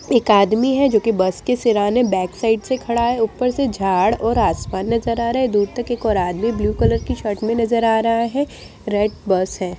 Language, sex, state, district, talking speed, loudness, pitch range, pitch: Hindi, female, Bihar, Jamui, 250 wpm, -18 LUFS, 200-235 Hz, 225 Hz